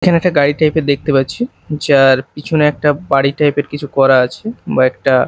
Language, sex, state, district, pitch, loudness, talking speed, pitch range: Bengali, male, Odisha, Malkangiri, 145 Hz, -14 LUFS, 205 wpm, 135-155 Hz